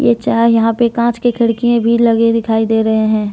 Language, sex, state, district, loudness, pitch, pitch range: Hindi, female, Jharkhand, Deoghar, -13 LUFS, 230 Hz, 225-235 Hz